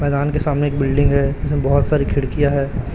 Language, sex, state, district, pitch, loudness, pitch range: Hindi, male, Chhattisgarh, Raipur, 140 Hz, -18 LUFS, 140-145 Hz